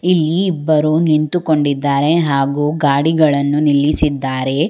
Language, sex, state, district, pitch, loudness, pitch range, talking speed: Kannada, female, Karnataka, Bangalore, 150 Hz, -15 LUFS, 140-160 Hz, 75 wpm